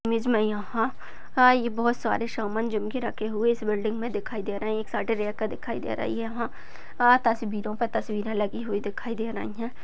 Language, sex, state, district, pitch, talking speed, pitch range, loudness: Hindi, female, Maharashtra, Sindhudurg, 225 Hz, 165 wpm, 215-235 Hz, -27 LUFS